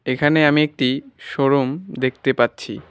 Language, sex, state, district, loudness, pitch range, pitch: Bengali, male, West Bengal, Alipurduar, -19 LUFS, 130-145 Hz, 135 Hz